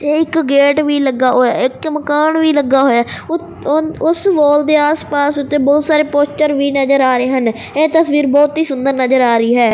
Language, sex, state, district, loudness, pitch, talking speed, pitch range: Punjabi, male, Punjab, Fazilka, -13 LUFS, 290 Hz, 215 wpm, 265-305 Hz